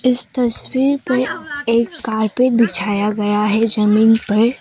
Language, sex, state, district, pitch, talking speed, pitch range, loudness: Hindi, female, Assam, Kamrup Metropolitan, 230 Hz, 130 wpm, 215-255 Hz, -16 LUFS